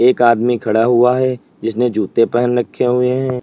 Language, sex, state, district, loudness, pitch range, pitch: Hindi, male, Uttar Pradesh, Lalitpur, -15 LUFS, 120-125 Hz, 120 Hz